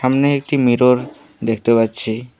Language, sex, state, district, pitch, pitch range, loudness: Bengali, male, West Bengal, Alipurduar, 125 Hz, 115-130 Hz, -17 LUFS